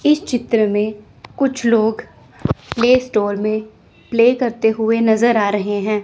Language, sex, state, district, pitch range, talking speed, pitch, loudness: Hindi, female, Chandigarh, Chandigarh, 215-240 Hz, 150 wpm, 225 Hz, -17 LUFS